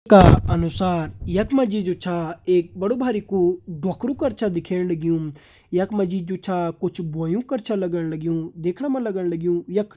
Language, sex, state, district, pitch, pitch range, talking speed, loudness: Hindi, male, Uttarakhand, Uttarkashi, 180 Hz, 170-205 Hz, 200 wpm, -22 LUFS